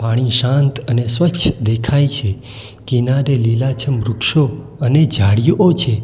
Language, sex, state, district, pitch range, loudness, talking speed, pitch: Gujarati, male, Gujarat, Valsad, 115-140 Hz, -15 LUFS, 120 wpm, 125 Hz